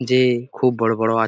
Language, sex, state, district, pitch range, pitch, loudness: Bengali, male, West Bengal, Jalpaiguri, 115-125 Hz, 120 Hz, -19 LUFS